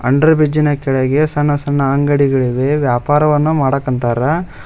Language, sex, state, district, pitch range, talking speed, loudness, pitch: Kannada, male, Karnataka, Koppal, 130-150 Hz, 105 wpm, -14 LUFS, 145 Hz